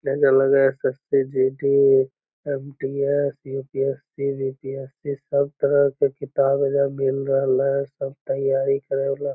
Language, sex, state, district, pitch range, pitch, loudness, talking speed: Magahi, male, Bihar, Lakhisarai, 135-140 Hz, 135 Hz, -22 LUFS, 115 wpm